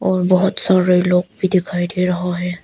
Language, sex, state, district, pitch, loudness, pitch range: Hindi, female, Arunachal Pradesh, Lower Dibang Valley, 180 Hz, -17 LUFS, 180-185 Hz